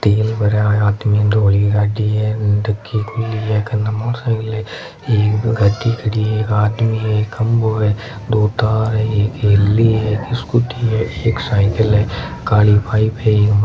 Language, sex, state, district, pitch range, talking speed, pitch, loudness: Marwari, male, Rajasthan, Nagaur, 105-110 Hz, 175 wpm, 110 Hz, -16 LUFS